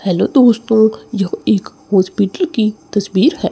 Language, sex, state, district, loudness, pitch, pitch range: Hindi, male, Chandigarh, Chandigarh, -15 LUFS, 210 Hz, 195-220 Hz